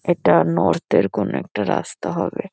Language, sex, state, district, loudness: Bengali, female, West Bengal, Kolkata, -20 LUFS